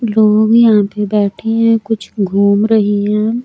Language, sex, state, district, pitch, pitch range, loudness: Hindi, female, Chandigarh, Chandigarh, 215 Hz, 205-225 Hz, -12 LUFS